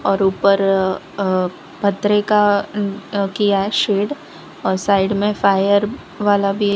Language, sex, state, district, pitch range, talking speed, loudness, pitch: Hindi, female, Gujarat, Valsad, 195-205 Hz, 135 wpm, -17 LUFS, 200 Hz